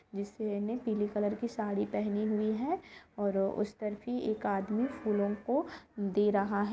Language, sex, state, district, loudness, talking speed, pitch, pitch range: Hindi, female, Jharkhand, Jamtara, -33 LUFS, 170 wpm, 210 Hz, 205-230 Hz